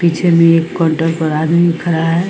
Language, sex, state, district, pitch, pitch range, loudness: Hindi, female, Bihar, Samastipur, 165 Hz, 165-170 Hz, -13 LUFS